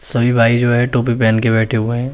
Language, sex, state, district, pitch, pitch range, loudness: Hindi, male, Uttar Pradesh, Shamli, 120 Hz, 115-120 Hz, -14 LUFS